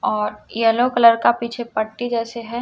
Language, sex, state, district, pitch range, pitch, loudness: Hindi, female, Chhattisgarh, Raipur, 225-240 Hz, 230 Hz, -19 LUFS